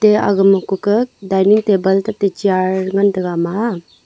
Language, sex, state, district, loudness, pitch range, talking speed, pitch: Wancho, female, Arunachal Pradesh, Longding, -15 LUFS, 190-205 Hz, 165 wpm, 195 Hz